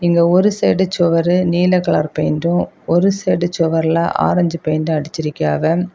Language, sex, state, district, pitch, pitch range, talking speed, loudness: Tamil, female, Tamil Nadu, Kanyakumari, 170 Hz, 160-180 Hz, 130 wpm, -16 LUFS